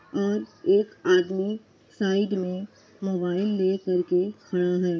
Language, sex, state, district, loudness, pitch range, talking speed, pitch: Hindi, female, Bihar, Kishanganj, -25 LUFS, 180-200 Hz, 130 wpm, 185 Hz